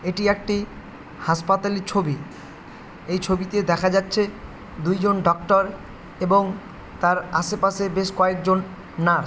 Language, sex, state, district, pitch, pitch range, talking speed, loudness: Bengali, male, West Bengal, Jalpaiguri, 190 Hz, 180-200 Hz, 110 wpm, -22 LUFS